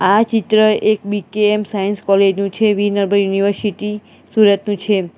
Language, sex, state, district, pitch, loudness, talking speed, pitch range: Gujarati, female, Gujarat, Valsad, 205 Hz, -16 LUFS, 150 wpm, 200-210 Hz